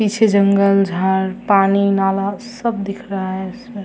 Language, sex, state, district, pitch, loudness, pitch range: Hindi, female, Bihar, Samastipur, 200 Hz, -17 LUFS, 195-205 Hz